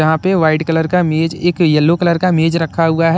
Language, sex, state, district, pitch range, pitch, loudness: Hindi, male, Jharkhand, Deoghar, 160-170 Hz, 165 Hz, -14 LUFS